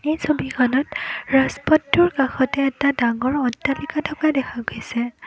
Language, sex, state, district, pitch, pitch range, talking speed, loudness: Assamese, female, Assam, Kamrup Metropolitan, 275 Hz, 260-305 Hz, 115 wpm, -21 LUFS